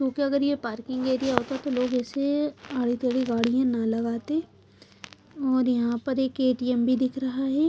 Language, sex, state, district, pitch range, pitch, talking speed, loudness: Hindi, female, Punjab, Fazilka, 245-270 Hz, 260 Hz, 195 wpm, -26 LUFS